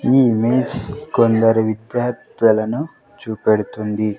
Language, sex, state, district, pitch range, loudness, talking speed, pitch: Telugu, male, Andhra Pradesh, Sri Satya Sai, 110-120 Hz, -18 LUFS, 70 wpm, 115 Hz